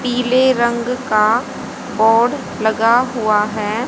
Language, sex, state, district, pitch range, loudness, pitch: Hindi, female, Haryana, Rohtak, 220-250 Hz, -15 LUFS, 235 Hz